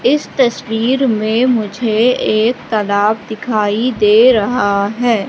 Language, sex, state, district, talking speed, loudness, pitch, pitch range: Hindi, female, Madhya Pradesh, Katni, 115 wpm, -14 LUFS, 225 Hz, 215-250 Hz